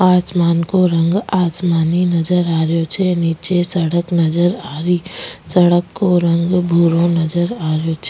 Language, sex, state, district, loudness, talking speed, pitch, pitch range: Rajasthani, female, Rajasthan, Nagaur, -16 LUFS, 155 wpm, 175 Hz, 165-180 Hz